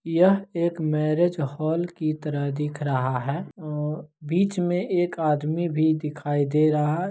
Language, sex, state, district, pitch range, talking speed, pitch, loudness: Maithili, male, Bihar, Begusarai, 150-175 Hz, 160 wpm, 155 Hz, -24 LUFS